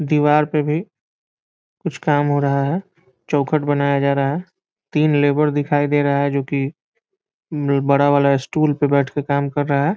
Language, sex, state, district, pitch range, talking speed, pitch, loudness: Hindi, male, Bihar, Saran, 140-155 Hz, 185 wpm, 145 Hz, -18 LUFS